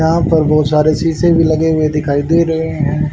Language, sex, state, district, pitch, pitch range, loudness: Hindi, male, Haryana, Rohtak, 155 Hz, 150-160 Hz, -13 LUFS